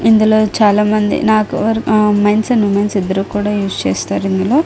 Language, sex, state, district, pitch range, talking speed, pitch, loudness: Telugu, female, Andhra Pradesh, Guntur, 200-215 Hz, 155 wpm, 210 Hz, -14 LUFS